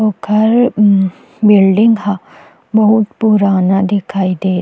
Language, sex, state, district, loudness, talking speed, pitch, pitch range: Chhattisgarhi, female, Chhattisgarh, Jashpur, -12 LUFS, 115 wpm, 205 Hz, 195-220 Hz